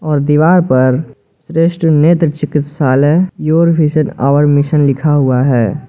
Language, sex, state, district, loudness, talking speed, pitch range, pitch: Hindi, male, Jharkhand, Ranchi, -12 LUFS, 135 wpm, 140-160 Hz, 150 Hz